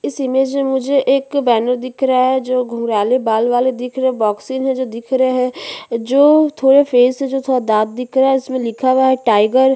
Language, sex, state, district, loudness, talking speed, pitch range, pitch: Hindi, female, Chhattisgarh, Bastar, -15 LUFS, 235 wpm, 245-265 Hz, 260 Hz